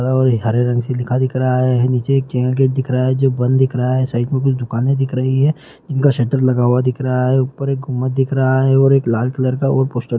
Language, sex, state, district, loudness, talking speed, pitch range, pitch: Hindi, male, Bihar, Lakhisarai, -16 LUFS, 295 wpm, 125-135 Hz, 130 Hz